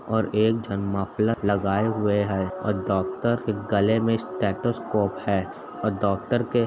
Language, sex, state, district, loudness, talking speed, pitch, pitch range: Hindi, male, Uttar Pradesh, Jalaun, -25 LUFS, 160 wpm, 105 Hz, 100-115 Hz